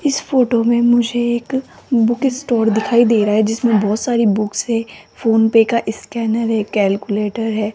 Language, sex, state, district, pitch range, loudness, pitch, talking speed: Hindi, female, Rajasthan, Jaipur, 215-240 Hz, -16 LUFS, 230 Hz, 180 wpm